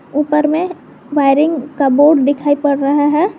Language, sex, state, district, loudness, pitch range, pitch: Hindi, female, Jharkhand, Garhwa, -14 LUFS, 280-300 Hz, 290 Hz